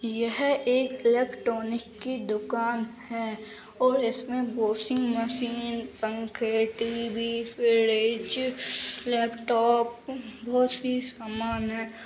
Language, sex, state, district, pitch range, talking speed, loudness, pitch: Hindi, female, Uttarakhand, Tehri Garhwal, 225-245 Hz, 90 wpm, -28 LUFS, 235 Hz